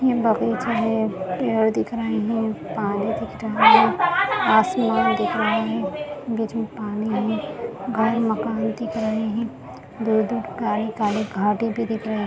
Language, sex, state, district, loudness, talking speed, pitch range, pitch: Hindi, female, Bihar, Gaya, -22 LUFS, 150 wpm, 215-230 Hz, 220 Hz